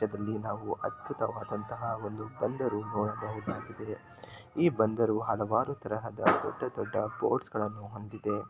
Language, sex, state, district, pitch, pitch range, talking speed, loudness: Kannada, male, Karnataka, Shimoga, 110 Hz, 105-110 Hz, 100 wpm, -33 LUFS